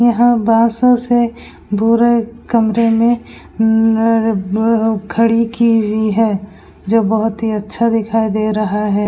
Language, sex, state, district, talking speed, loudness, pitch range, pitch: Hindi, female, Uttar Pradesh, Etah, 130 wpm, -14 LUFS, 215-230 Hz, 225 Hz